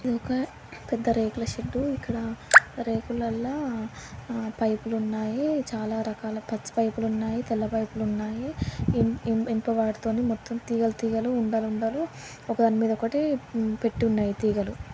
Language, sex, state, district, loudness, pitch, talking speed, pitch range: Telugu, female, Andhra Pradesh, Guntur, -27 LUFS, 225 Hz, 115 wpm, 220-235 Hz